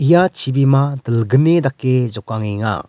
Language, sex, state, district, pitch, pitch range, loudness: Garo, male, Meghalaya, West Garo Hills, 135 Hz, 110-140 Hz, -16 LUFS